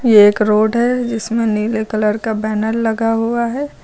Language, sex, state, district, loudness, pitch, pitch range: Hindi, female, Uttar Pradesh, Lucknow, -16 LUFS, 225 Hz, 215-230 Hz